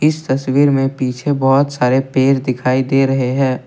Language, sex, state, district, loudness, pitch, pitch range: Hindi, male, Assam, Kamrup Metropolitan, -15 LUFS, 135 Hz, 130-140 Hz